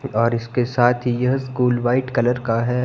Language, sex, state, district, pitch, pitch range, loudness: Hindi, male, Himachal Pradesh, Shimla, 125 Hz, 120-125 Hz, -20 LUFS